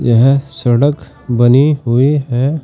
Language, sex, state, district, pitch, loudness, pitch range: Hindi, male, Uttar Pradesh, Saharanpur, 130 Hz, -12 LUFS, 120-145 Hz